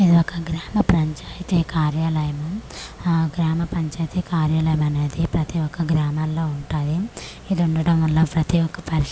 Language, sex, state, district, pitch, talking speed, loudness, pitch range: Telugu, female, Andhra Pradesh, Manyam, 160 Hz, 145 wpm, -22 LUFS, 155-170 Hz